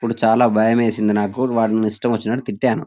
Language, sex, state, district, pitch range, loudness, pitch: Telugu, male, Telangana, Nalgonda, 110-120 Hz, -18 LUFS, 115 Hz